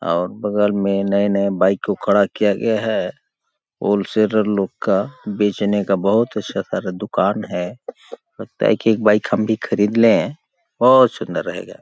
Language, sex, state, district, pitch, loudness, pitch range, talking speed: Hindi, male, Chhattisgarh, Balrampur, 105 Hz, -18 LUFS, 100-110 Hz, 180 wpm